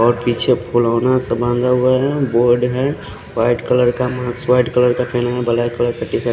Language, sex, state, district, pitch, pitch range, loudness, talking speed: Hindi, male, Odisha, Khordha, 125 Hz, 120-125 Hz, -16 LUFS, 220 wpm